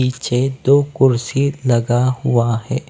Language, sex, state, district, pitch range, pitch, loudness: Hindi, male, Bihar, Patna, 120-135 Hz, 130 Hz, -17 LUFS